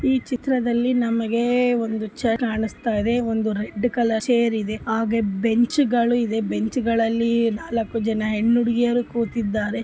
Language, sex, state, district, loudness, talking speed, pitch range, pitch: Kannada, female, Karnataka, Bellary, -22 LUFS, 120 wpm, 220-240 Hz, 230 Hz